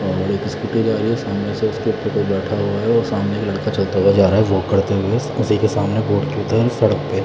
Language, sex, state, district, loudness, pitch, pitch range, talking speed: Hindi, male, Punjab, Fazilka, -18 LUFS, 105 Hz, 100-110 Hz, 255 wpm